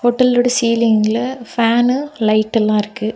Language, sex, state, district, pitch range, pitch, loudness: Tamil, female, Tamil Nadu, Kanyakumari, 215-245 Hz, 230 Hz, -15 LUFS